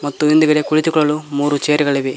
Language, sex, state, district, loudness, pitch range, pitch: Kannada, male, Karnataka, Koppal, -15 LUFS, 145-155 Hz, 150 Hz